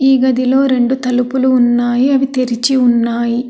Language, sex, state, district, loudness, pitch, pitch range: Telugu, female, Telangana, Hyderabad, -13 LUFS, 255 Hz, 240-260 Hz